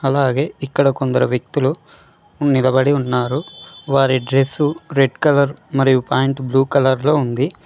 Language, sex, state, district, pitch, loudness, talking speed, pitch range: Telugu, male, Telangana, Mahabubabad, 135 Hz, -17 LUFS, 125 wpm, 130-145 Hz